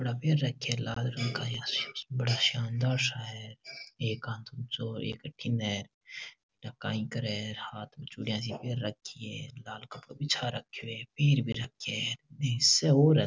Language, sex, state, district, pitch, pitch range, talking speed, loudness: Marwari, male, Rajasthan, Nagaur, 120 Hz, 115-130 Hz, 165 wpm, -31 LUFS